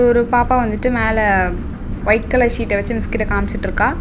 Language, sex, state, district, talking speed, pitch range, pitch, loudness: Tamil, female, Tamil Nadu, Namakkal, 165 wpm, 215-245 Hz, 235 Hz, -17 LUFS